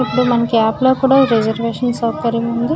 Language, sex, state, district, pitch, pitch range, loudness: Telugu, female, Andhra Pradesh, Srikakulam, 235 Hz, 230-255 Hz, -15 LUFS